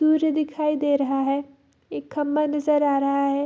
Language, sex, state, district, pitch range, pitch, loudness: Hindi, female, Bihar, Bhagalpur, 280-300 Hz, 290 Hz, -23 LUFS